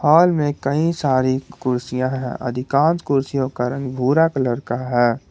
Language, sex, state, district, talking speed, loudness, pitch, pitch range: Hindi, male, Jharkhand, Garhwa, 160 wpm, -20 LUFS, 135 Hz, 125-145 Hz